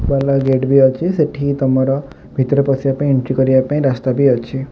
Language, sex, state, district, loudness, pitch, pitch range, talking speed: Odia, male, Odisha, Khordha, -15 LUFS, 135 Hz, 130-140 Hz, 180 wpm